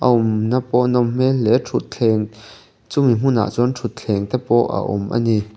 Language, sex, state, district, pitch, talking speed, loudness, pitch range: Mizo, male, Mizoram, Aizawl, 115 Hz, 205 wpm, -18 LUFS, 110-125 Hz